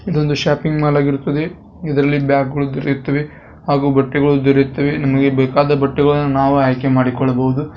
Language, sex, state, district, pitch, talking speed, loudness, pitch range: Kannada, male, Karnataka, Bijapur, 140 Hz, 125 wpm, -15 LUFS, 135-145 Hz